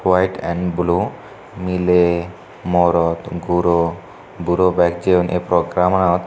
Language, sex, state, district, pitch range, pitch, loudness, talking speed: Chakma, male, Tripura, Dhalai, 85-90 Hz, 90 Hz, -18 LUFS, 105 wpm